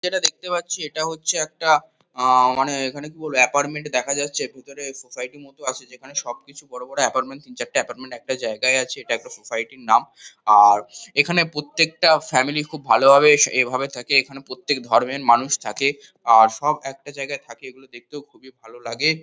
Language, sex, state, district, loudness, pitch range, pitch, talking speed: Bengali, male, West Bengal, North 24 Parganas, -19 LUFS, 125-150 Hz, 135 Hz, 185 wpm